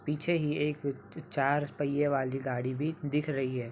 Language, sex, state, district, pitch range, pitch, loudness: Hindi, male, Bihar, Begusarai, 135-150 Hz, 145 Hz, -32 LUFS